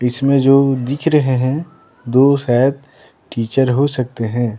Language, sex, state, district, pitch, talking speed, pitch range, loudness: Hindi, male, Bihar, Patna, 135 Hz, 145 wpm, 125-140 Hz, -15 LUFS